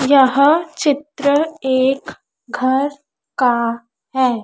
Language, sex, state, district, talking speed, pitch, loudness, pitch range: Hindi, female, Madhya Pradesh, Dhar, 80 wpm, 270 Hz, -17 LUFS, 255-285 Hz